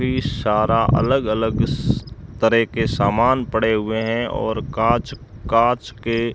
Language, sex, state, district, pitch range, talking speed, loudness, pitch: Hindi, male, Rajasthan, Bikaner, 110-120 Hz, 150 wpm, -19 LUFS, 115 Hz